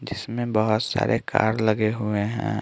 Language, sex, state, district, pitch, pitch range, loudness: Hindi, male, Bihar, Patna, 110 Hz, 110-115 Hz, -23 LUFS